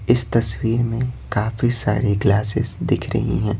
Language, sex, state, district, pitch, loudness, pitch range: Hindi, male, Bihar, Patna, 110 Hz, -20 LUFS, 105-120 Hz